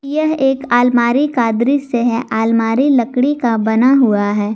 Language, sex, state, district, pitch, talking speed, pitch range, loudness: Hindi, female, Jharkhand, Garhwa, 240 Hz, 160 wpm, 225-270 Hz, -14 LUFS